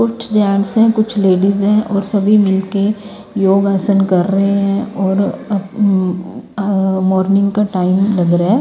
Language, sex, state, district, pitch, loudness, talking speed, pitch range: Hindi, female, Himachal Pradesh, Shimla, 200 Hz, -14 LUFS, 145 wpm, 190-210 Hz